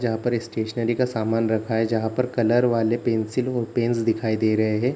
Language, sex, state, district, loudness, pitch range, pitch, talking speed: Hindi, male, Bihar, Darbhanga, -23 LUFS, 110-120 Hz, 115 Hz, 230 wpm